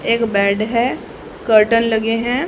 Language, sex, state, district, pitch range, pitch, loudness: Hindi, female, Haryana, Rohtak, 215-235 Hz, 230 Hz, -16 LUFS